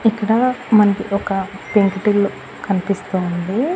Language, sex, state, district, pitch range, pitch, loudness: Telugu, female, Andhra Pradesh, Annamaya, 195-220 Hz, 200 Hz, -18 LUFS